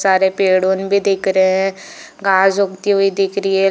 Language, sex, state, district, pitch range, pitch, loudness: Hindi, female, Chhattisgarh, Bilaspur, 190-195 Hz, 195 Hz, -15 LUFS